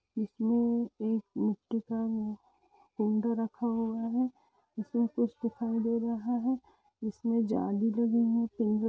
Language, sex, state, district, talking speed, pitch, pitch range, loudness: Hindi, female, Jharkhand, Jamtara, 130 wpm, 230 Hz, 225-235 Hz, -32 LUFS